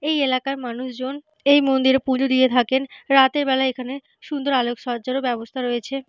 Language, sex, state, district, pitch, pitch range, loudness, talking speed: Bengali, female, Jharkhand, Jamtara, 265 Hz, 255-275 Hz, -21 LUFS, 150 wpm